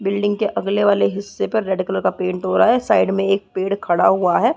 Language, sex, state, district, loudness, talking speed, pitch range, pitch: Hindi, female, Chhattisgarh, Balrampur, -18 LUFS, 275 wpm, 185-205 Hz, 195 Hz